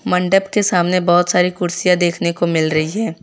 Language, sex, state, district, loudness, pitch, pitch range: Hindi, female, Gujarat, Valsad, -16 LUFS, 180 Hz, 170-185 Hz